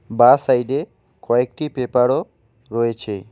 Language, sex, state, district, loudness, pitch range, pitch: Bengali, male, West Bengal, Alipurduar, -19 LUFS, 115-125 Hz, 120 Hz